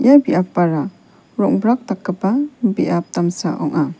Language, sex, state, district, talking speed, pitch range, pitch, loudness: Garo, female, Meghalaya, West Garo Hills, 105 wpm, 170-240 Hz, 185 Hz, -18 LUFS